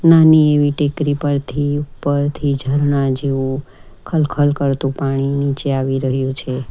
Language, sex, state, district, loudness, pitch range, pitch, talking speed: Gujarati, female, Gujarat, Valsad, -17 LUFS, 135-145 Hz, 140 Hz, 125 wpm